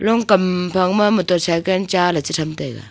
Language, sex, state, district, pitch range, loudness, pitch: Wancho, female, Arunachal Pradesh, Longding, 170-195 Hz, -17 LUFS, 180 Hz